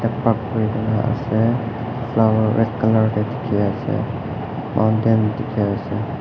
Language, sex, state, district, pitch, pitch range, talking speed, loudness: Nagamese, male, Nagaland, Kohima, 110 Hz, 110-120 Hz, 105 wpm, -20 LUFS